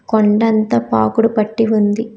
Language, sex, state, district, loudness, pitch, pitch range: Telugu, female, Telangana, Hyderabad, -15 LUFS, 215 Hz, 205-225 Hz